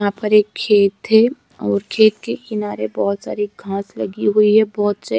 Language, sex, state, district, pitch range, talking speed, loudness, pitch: Hindi, female, Maharashtra, Gondia, 200-215 Hz, 185 wpm, -17 LUFS, 205 Hz